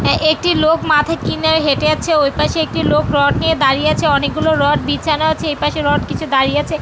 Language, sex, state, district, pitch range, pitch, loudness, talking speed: Bengali, female, West Bengal, Jhargram, 275-315 Hz, 305 Hz, -15 LUFS, 235 wpm